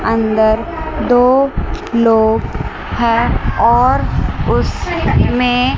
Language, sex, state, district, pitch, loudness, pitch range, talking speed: Hindi, male, Chandigarh, Chandigarh, 235 Hz, -14 LUFS, 225-245 Hz, 75 wpm